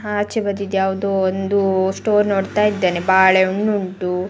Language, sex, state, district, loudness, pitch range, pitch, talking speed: Kannada, female, Karnataka, Dakshina Kannada, -18 LUFS, 190-205 Hz, 195 Hz, 140 wpm